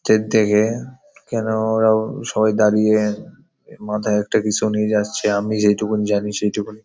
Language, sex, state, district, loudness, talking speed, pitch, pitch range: Bengali, male, West Bengal, Paschim Medinipur, -19 LUFS, 160 wpm, 105 Hz, 105-110 Hz